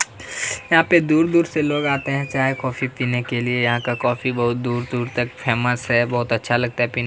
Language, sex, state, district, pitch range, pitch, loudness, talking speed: Hindi, male, Chhattisgarh, Kabirdham, 120-140 Hz, 125 Hz, -20 LUFS, 210 wpm